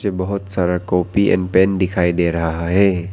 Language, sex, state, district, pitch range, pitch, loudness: Hindi, male, Arunachal Pradesh, Papum Pare, 90-100 Hz, 95 Hz, -17 LUFS